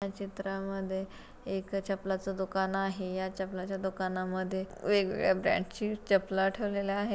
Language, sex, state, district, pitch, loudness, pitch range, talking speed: Marathi, female, Maharashtra, Pune, 195 Hz, -33 LUFS, 190-195 Hz, 135 wpm